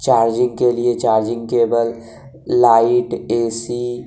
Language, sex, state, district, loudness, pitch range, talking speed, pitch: Hindi, male, Jharkhand, Deoghar, -17 LUFS, 115-120 Hz, 120 wpm, 120 Hz